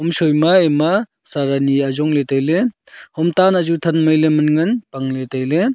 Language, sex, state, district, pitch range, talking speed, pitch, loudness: Wancho, male, Arunachal Pradesh, Longding, 140-170 Hz, 175 wpm, 155 Hz, -16 LUFS